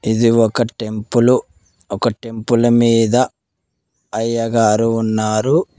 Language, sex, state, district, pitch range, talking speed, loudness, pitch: Telugu, male, Telangana, Mahabubabad, 110-120 Hz, 85 wpm, -16 LUFS, 115 Hz